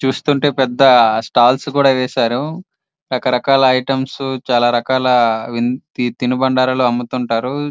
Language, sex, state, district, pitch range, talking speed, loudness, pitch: Telugu, male, Andhra Pradesh, Srikakulam, 125-135 Hz, 100 wpm, -15 LUFS, 130 Hz